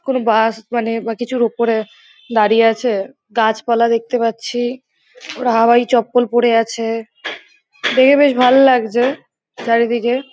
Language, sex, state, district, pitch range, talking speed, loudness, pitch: Bengali, female, West Bengal, Kolkata, 230-250 Hz, 135 wpm, -15 LUFS, 235 Hz